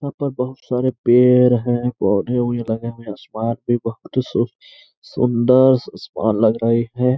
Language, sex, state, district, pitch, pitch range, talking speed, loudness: Hindi, male, Bihar, Gaya, 120 Hz, 115-125 Hz, 160 wpm, -18 LUFS